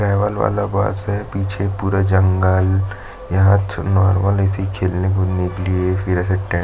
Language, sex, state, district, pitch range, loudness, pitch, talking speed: Hindi, male, Chhattisgarh, Jashpur, 95-100 Hz, -18 LUFS, 95 Hz, 160 wpm